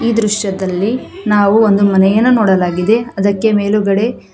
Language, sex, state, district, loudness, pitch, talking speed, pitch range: Kannada, female, Karnataka, Koppal, -13 LUFS, 205 Hz, 110 wpm, 195-225 Hz